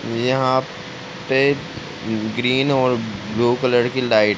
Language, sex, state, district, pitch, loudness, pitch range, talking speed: Hindi, male, Uttar Pradesh, Ghazipur, 125 Hz, -19 LUFS, 115-130 Hz, 125 wpm